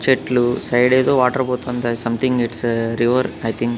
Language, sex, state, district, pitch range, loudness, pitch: Telugu, male, Andhra Pradesh, Annamaya, 120-125 Hz, -18 LUFS, 120 Hz